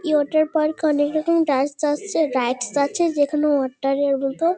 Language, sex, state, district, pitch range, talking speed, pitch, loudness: Bengali, female, West Bengal, Kolkata, 275-310 Hz, 155 wpm, 295 Hz, -20 LUFS